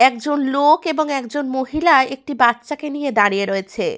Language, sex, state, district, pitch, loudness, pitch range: Bengali, female, West Bengal, Paschim Medinipur, 280 Hz, -18 LUFS, 245-295 Hz